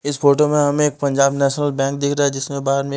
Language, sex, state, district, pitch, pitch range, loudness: Hindi, male, Punjab, Fazilka, 140 Hz, 140-145 Hz, -18 LUFS